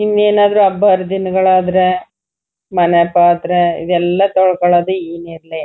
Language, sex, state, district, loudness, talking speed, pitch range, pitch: Kannada, female, Karnataka, Chamarajanagar, -13 LUFS, 125 wpm, 175-190 Hz, 185 Hz